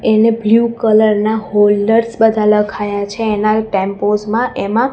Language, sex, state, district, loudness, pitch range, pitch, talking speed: Gujarati, female, Gujarat, Gandhinagar, -14 LUFS, 210-225 Hz, 215 Hz, 145 wpm